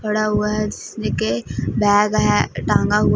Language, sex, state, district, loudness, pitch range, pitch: Hindi, female, Punjab, Fazilka, -19 LUFS, 130-210 Hz, 210 Hz